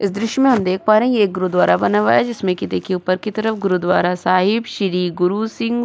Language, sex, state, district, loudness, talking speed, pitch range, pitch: Hindi, female, Uttar Pradesh, Jyotiba Phule Nagar, -17 LUFS, 245 wpm, 185-220 Hz, 200 Hz